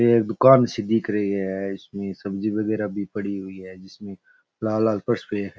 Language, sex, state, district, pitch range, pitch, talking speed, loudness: Rajasthani, male, Rajasthan, Churu, 100-110 Hz, 105 Hz, 195 wpm, -23 LUFS